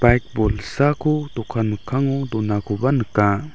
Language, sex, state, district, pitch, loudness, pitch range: Garo, male, Meghalaya, West Garo Hills, 120 Hz, -21 LUFS, 105-135 Hz